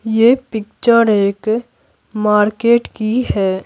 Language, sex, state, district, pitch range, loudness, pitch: Hindi, female, Bihar, Patna, 210-235 Hz, -15 LUFS, 220 Hz